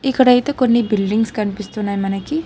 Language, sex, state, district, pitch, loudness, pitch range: Telugu, female, Telangana, Hyderabad, 220 Hz, -17 LUFS, 205-255 Hz